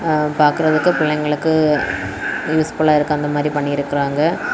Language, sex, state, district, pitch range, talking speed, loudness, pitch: Tamil, female, Tamil Nadu, Kanyakumari, 145-155 Hz, 105 wpm, -17 LUFS, 150 Hz